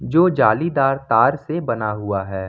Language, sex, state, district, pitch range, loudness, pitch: Hindi, male, Jharkhand, Ranchi, 105-145 Hz, -18 LUFS, 115 Hz